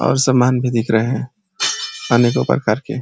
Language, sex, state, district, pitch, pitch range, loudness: Hindi, male, Uttar Pradesh, Ghazipur, 120 Hz, 110-130 Hz, -17 LUFS